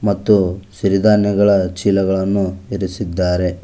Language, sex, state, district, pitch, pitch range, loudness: Kannada, male, Karnataka, Koppal, 95 Hz, 95-100 Hz, -16 LUFS